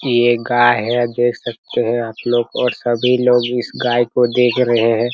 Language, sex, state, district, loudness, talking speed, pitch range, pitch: Hindi, male, Bihar, Araria, -16 LUFS, 200 wpm, 120-125 Hz, 120 Hz